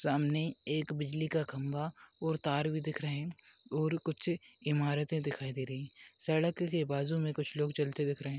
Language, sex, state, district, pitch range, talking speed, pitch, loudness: Hindi, male, Maharashtra, Chandrapur, 145-160 Hz, 180 wpm, 150 Hz, -35 LUFS